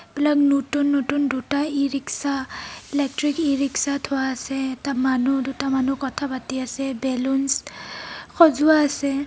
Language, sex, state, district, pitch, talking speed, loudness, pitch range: Assamese, female, Assam, Kamrup Metropolitan, 275 Hz, 135 wpm, -22 LUFS, 265-285 Hz